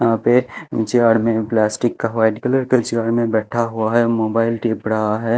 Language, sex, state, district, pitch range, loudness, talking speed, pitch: Hindi, male, Chhattisgarh, Raipur, 110-120 Hz, -18 LUFS, 210 wpm, 115 Hz